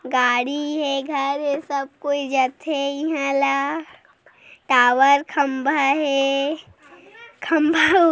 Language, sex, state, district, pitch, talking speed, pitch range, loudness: Hindi, female, Chhattisgarh, Korba, 285 Hz, 95 wpm, 275-305 Hz, -20 LUFS